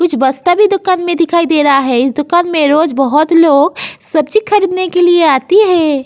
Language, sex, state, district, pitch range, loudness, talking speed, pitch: Hindi, female, Uttar Pradesh, Jyotiba Phule Nagar, 290-355 Hz, -11 LUFS, 210 wpm, 335 Hz